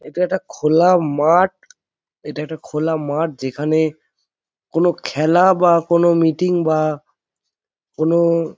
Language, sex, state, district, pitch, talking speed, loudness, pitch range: Bengali, male, West Bengal, Jhargram, 165 Hz, 125 wpm, -17 LUFS, 155-175 Hz